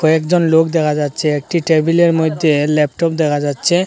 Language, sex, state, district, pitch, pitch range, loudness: Bengali, male, Assam, Hailakandi, 160 Hz, 150-165 Hz, -14 LUFS